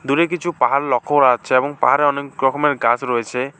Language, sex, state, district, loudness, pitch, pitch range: Bengali, male, West Bengal, Alipurduar, -17 LUFS, 135 Hz, 125-145 Hz